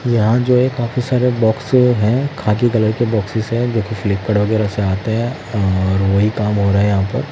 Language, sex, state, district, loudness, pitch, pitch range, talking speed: Hindi, male, Haryana, Jhajjar, -16 LUFS, 110 Hz, 105-120 Hz, 220 wpm